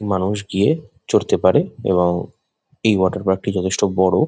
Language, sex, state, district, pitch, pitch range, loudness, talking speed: Bengali, male, West Bengal, Jhargram, 95 Hz, 95-110 Hz, -19 LUFS, 155 wpm